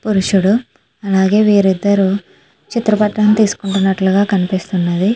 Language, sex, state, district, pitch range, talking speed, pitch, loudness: Telugu, female, Andhra Pradesh, Chittoor, 190-210 Hz, 80 wpm, 200 Hz, -14 LUFS